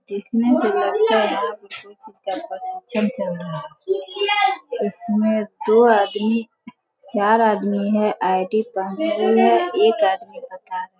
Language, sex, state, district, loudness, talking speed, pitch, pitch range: Hindi, female, Bihar, Sitamarhi, -20 LUFS, 125 wpm, 220 Hz, 200-250 Hz